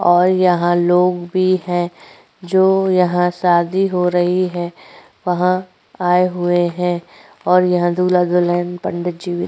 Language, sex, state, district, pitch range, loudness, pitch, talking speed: Hindi, female, Uttar Pradesh, Jyotiba Phule Nagar, 175-180 Hz, -16 LUFS, 180 Hz, 150 wpm